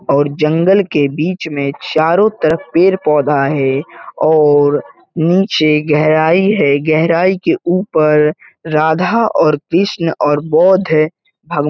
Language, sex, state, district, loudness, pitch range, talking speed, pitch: Hindi, male, Bihar, Lakhisarai, -13 LUFS, 150-180 Hz, 125 wpm, 155 Hz